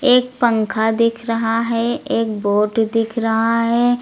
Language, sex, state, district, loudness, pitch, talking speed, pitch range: Hindi, female, Uttar Pradesh, Lucknow, -18 LUFS, 230 Hz, 150 wpm, 225-235 Hz